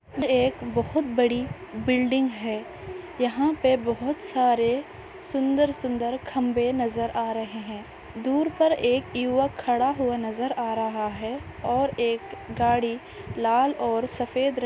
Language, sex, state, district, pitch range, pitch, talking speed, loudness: Hindi, female, Maharashtra, Nagpur, 235-270 Hz, 250 Hz, 140 wpm, -25 LUFS